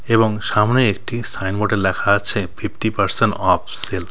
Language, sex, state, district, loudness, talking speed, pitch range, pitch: Bengali, male, West Bengal, Cooch Behar, -18 LUFS, 160 wpm, 100-110 Hz, 105 Hz